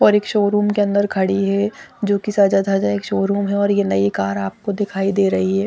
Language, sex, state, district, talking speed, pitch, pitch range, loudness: Hindi, female, Chandigarh, Chandigarh, 255 wpm, 200 Hz, 195-205 Hz, -18 LUFS